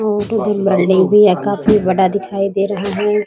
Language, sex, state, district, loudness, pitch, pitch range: Hindi, female, Bihar, Muzaffarpur, -14 LUFS, 200 Hz, 195-210 Hz